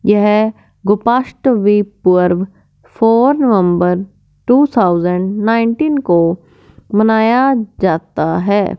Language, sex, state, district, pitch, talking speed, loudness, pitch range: Hindi, male, Punjab, Fazilka, 205 Hz, 80 wpm, -13 LUFS, 180-230 Hz